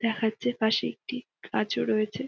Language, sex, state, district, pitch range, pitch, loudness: Bengali, female, West Bengal, Dakshin Dinajpur, 220-245 Hz, 220 Hz, -29 LUFS